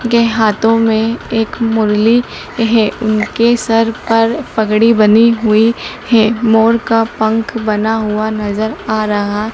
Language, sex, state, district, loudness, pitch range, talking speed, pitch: Hindi, male, Madhya Pradesh, Dhar, -13 LUFS, 215-230 Hz, 130 wpm, 225 Hz